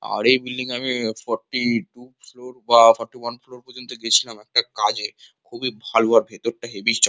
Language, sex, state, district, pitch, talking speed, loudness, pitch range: Bengali, male, West Bengal, Kolkata, 120 Hz, 180 wpm, -20 LUFS, 115-125 Hz